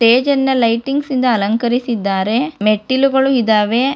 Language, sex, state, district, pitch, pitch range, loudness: Kannada, female, Karnataka, Bangalore, 240 Hz, 215-265 Hz, -15 LUFS